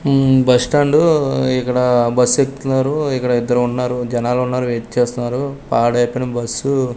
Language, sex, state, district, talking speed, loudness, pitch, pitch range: Telugu, male, Andhra Pradesh, Manyam, 120 wpm, -16 LUFS, 125 Hz, 120-135 Hz